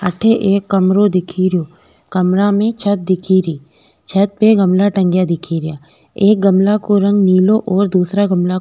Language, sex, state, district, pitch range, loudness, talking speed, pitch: Rajasthani, female, Rajasthan, Nagaur, 180-205 Hz, -14 LUFS, 175 wpm, 190 Hz